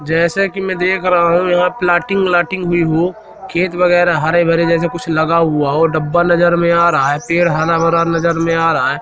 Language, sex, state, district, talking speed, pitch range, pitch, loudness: Hindi, male, Madhya Pradesh, Katni, 225 wpm, 165-175 Hz, 170 Hz, -14 LUFS